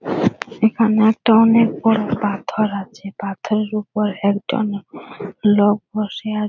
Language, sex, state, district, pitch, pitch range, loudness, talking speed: Bengali, female, West Bengal, Purulia, 215 Hz, 205-220 Hz, -18 LUFS, 110 wpm